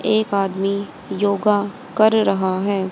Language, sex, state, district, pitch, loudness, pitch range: Hindi, female, Haryana, Jhajjar, 200 Hz, -19 LUFS, 195-210 Hz